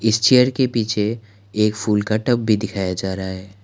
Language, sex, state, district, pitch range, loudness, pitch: Hindi, male, Assam, Kamrup Metropolitan, 100-115 Hz, -19 LUFS, 105 Hz